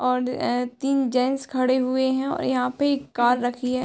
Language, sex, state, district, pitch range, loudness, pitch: Hindi, female, Uttar Pradesh, Hamirpur, 250-265 Hz, -23 LUFS, 255 Hz